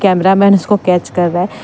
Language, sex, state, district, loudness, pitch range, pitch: Hindi, female, Jharkhand, Deoghar, -12 LUFS, 180-195 Hz, 190 Hz